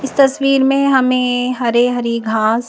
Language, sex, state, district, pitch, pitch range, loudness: Hindi, female, Madhya Pradesh, Bhopal, 250 Hz, 235-270 Hz, -14 LUFS